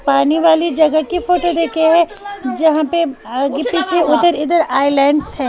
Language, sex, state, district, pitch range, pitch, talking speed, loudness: Hindi, female, Bihar, West Champaran, 280-340 Hz, 320 Hz, 165 wpm, -14 LUFS